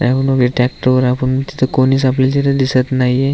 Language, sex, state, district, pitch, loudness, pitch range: Marathi, male, Maharashtra, Aurangabad, 130 Hz, -14 LUFS, 130-135 Hz